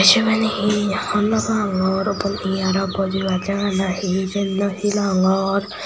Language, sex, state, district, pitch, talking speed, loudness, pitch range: Chakma, male, Tripura, Unakoti, 200 Hz, 145 wpm, -20 LUFS, 190-205 Hz